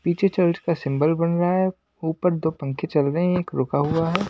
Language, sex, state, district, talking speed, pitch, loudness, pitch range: Hindi, male, Maharashtra, Washim, 235 wpm, 170 Hz, -22 LUFS, 160-180 Hz